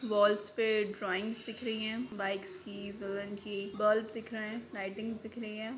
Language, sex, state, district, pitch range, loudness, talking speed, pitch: Hindi, female, Jharkhand, Sahebganj, 200-225 Hz, -35 LUFS, 185 wpm, 215 Hz